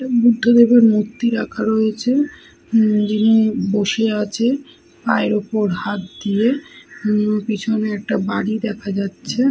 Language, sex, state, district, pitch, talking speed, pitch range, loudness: Bengali, female, West Bengal, Paschim Medinipur, 220 Hz, 115 wpm, 210-240 Hz, -18 LUFS